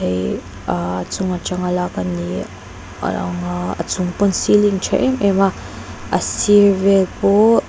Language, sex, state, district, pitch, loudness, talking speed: Mizo, female, Mizoram, Aizawl, 180 Hz, -17 LUFS, 170 wpm